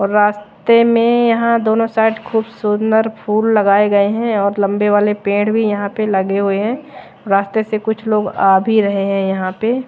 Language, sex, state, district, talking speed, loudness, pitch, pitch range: Hindi, female, Odisha, Malkangiri, 190 wpm, -15 LUFS, 210 Hz, 200-225 Hz